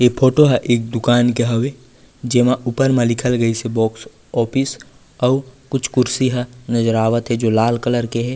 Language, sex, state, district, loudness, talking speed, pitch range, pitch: Chhattisgarhi, male, Chhattisgarh, Raigarh, -17 LUFS, 185 wpm, 115-130 Hz, 120 Hz